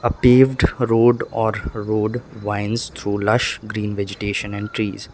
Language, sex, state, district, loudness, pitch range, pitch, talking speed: English, male, Sikkim, Gangtok, -20 LUFS, 105-115 Hz, 110 Hz, 130 wpm